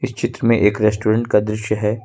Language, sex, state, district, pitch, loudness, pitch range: Hindi, male, Jharkhand, Ranchi, 110 Hz, -18 LUFS, 105-115 Hz